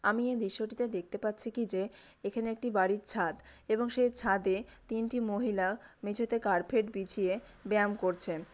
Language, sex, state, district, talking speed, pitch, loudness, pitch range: Bengali, female, West Bengal, Malda, 145 wpm, 210 Hz, -32 LUFS, 195-230 Hz